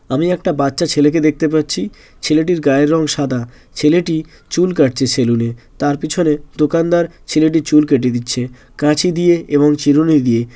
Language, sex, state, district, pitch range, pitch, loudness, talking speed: Bengali, male, West Bengal, Jalpaiguri, 135-165 Hz, 150 Hz, -15 LUFS, 160 wpm